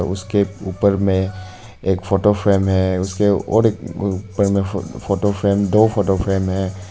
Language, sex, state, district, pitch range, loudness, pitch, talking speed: Hindi, male, Arunachal Pradesh, Papum Pare, 95-100 Hz, -18 LUFS, 100 Hz, 150 wpm